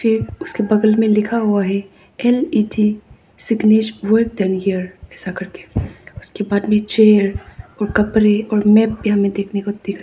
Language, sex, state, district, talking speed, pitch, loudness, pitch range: Hindi, female, Arunachal Pradesh, Papum Pare, 160 wpm, 210 Hz, -17 LUFS, 200-220 Hz